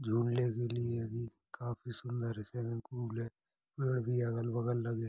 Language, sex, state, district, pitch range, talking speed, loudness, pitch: Hindi, male, Uttar Pradesh, Hamirpur, 115-120 Hz, 155 wpm, -37 LUFS, 120 Hz